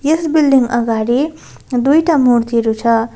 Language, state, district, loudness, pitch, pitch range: Nepali, West Bengal, Darjeeling, -14 LUFS, 245 Hz, 230-295 Hz